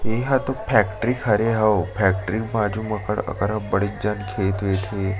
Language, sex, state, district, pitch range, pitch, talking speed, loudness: Chhattisgarhi, male, Chhattisgarh, Sarguja, 100-110 Hz, 105 Hz, 175 wpm, -22 LUFS